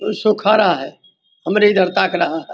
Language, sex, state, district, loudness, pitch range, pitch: Hindi, male, Bihar, Vaishali, -16 LUFS, 205-215 Hz, 210 Hz